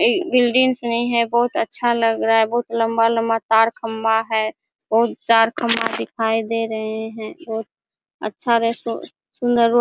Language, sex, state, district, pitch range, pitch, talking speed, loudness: Hindi, female, Chhattisgarh, Korba, 225-235 Hz, 230 Hz, 175 wpm, -19 LUFS